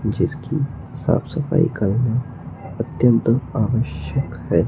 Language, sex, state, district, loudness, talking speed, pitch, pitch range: Hindi, male, Maharashtra, Gondia, -21 LUFS, 90 wpm, 125 Hz, 115-140 Hz